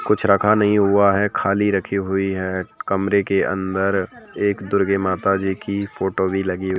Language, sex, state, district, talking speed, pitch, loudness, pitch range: Hindi, male, Madhya Pradesh, Bhopal, 185 wpm, 95 Hz, -20 LUFS, 95-100 Hz